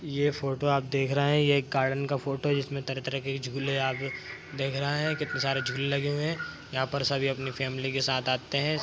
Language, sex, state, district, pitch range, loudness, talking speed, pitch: Hindi, male, Bihar, Madhepura, 135-145 Hz, -29 LUFS, 240 wpm, 135 Hz